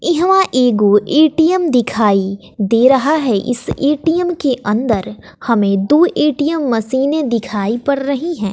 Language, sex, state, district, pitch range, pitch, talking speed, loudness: Hindi, female, Bihar, West Champaran, 220-310 Hz, 260 Hz, 135 wpm, -14 LUFS